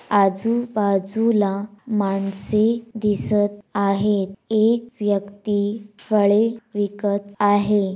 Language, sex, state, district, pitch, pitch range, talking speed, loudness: Marathi, female, Maharashtra, Dhule, 205 Hz, 200-215 Hz, 70 wpm, -21 LUFS